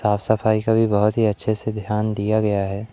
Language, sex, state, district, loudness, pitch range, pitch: Hindi, male, Madhya Pradesh, Umaria, -20 LUFS, 105-110 Hz, 110 Hz